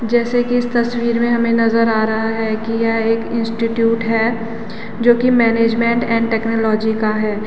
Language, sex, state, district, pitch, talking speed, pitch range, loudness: Hindi, female, Uttarakhand, Tehri Garhwal, 230 Hz, 175 wpm, 225-235 Hz, -16 LUFS